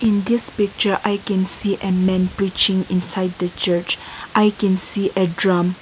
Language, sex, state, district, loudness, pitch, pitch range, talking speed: English, female, Nagaland, Kohima, -17 LUFS, 190 Hz, 185-200 Hz, 175 wpm